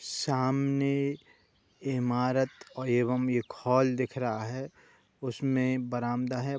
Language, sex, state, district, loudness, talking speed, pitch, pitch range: Hindi, male, Uttar Pradesh, Budaun, -30 LUFS, 100 wpm, 130 Hz, 125-135 Hz